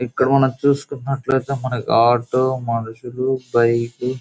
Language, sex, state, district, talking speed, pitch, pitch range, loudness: Telugu, male, Andhra Pradesh, Guntur, 100 wpm, 130 Hz, 120-135 Hz, -19 LUFS